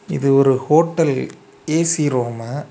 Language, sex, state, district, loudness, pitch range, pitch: Tamil, male, Tamil Nadu, Kanyakumari, -17 LUFS, 135-160 Hz, 145 Hz